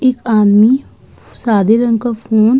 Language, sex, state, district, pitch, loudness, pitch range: Hindi, female, Uttar Pradesh, Budaun, 225 Hz, -12 LUFS, 215-245 Hz